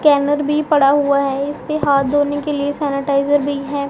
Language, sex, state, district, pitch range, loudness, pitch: Hindi, female, Punjab, Pathankot, 280-290 Hz, -17 LUFS, 285 Hz